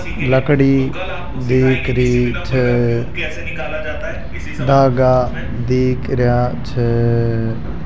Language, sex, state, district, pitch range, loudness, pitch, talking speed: Hindi, male, Rajasthan, Jaipur, 120-130 Hz, -17 LUFS, 125 Hz, 60 wpm